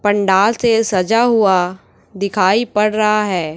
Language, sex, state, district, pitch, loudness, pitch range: Hindi, female, Chhattisgarh, Raipur, 205 Hz, -15 LUFS, 190-220 Hz